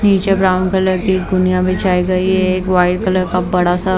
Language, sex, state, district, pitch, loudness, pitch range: Hindi, female, Maharashtra, Mumbai Suburban, 185 Hz, -14 LUFS, 185-190 Hz